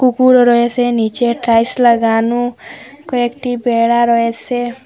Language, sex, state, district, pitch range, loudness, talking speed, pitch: Bengali, female, Assam, Hailakandi, 235-250 Hz, -13 LUFS, 110 wpm, 240 Hz